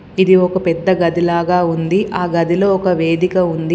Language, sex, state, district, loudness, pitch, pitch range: Telugu, female, Telangana, Komaram Bheem, -15 LUFS, 180 Hz, 170-185 Hz